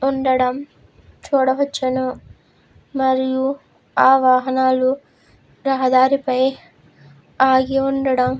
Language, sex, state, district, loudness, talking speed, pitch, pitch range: Telugu, female, Andhra Pradesh, Krishna, -18 LUFS, 55 wpm, 260 Hz, 255-270 Hz